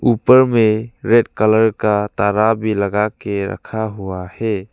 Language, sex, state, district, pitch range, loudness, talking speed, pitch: Hindi, male, Arunachal Pradesh, Lower Dibang Valley, 100-115 Hz, -16 LUFS, 150 wpm, 110 Hz